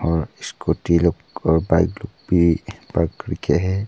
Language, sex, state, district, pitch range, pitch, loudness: Hindi, male, Arunachal Pradesh, Papum Pare, 80-95 Hz, 85 Hz, -21 LUFS